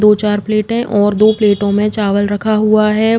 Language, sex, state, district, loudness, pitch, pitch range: Hindi, female, Uttar Pradesh, Jalaun, -13 LUFS, 210 Hz, 205-215 Hz